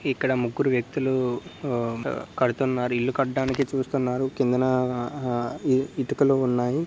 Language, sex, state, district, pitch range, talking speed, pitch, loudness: Telugu, male, Andhra Pradesh, Srikakulam, 125-135 Hz, 95 wpm, 130 Hz, -25 LUFS